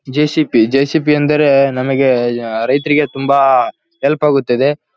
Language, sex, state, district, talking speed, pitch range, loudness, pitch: Kannada, male, Karnataka, Bellary, 85 wpm, 130-150 Hz, -13 LUFS, 140 Hz